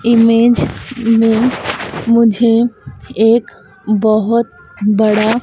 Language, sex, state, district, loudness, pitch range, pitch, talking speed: Hindi, female, Madhya Pradesh, Dhar, -13 LUFS, 215-235 Hz, 225 Hz, 65 wpm